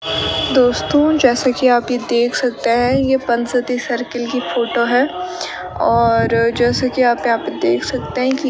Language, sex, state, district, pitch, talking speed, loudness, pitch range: Hindi, female, Rajasthan, Bikaner, 245 Hz, 185 wpm, -16 LUFS, 235-255 Hz